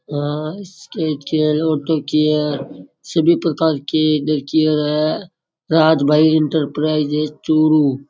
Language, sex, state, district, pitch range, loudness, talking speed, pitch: Rajasthani, male, Rajasthan, Churu, 150-160 Hz, -17 LUFS, 90 wpm, 155 Hz